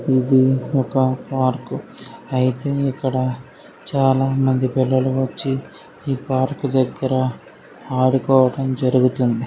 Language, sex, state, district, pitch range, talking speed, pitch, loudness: Telugu, male, Telangana, Karimnagar, 130-135 Hz, 80 wpm, 130 Hz, -19 LUFS